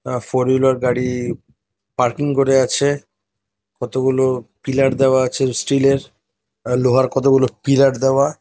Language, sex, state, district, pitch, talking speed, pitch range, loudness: Bengali, male, West Bengal, North 24 Parganas, 130 Hz, 130 wpm, 125-135 Hz, -17 LUFS